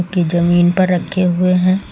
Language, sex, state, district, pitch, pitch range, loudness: Hindi, female, Uttar Pradesh, Lucknow, 180 Hz, 175-185 Hz, -14 LUFS